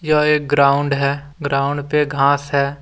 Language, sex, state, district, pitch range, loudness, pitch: Hindi, male, Jharkhand, Deoghar, 140-145 Hz, -17 LUFS, 145 Hz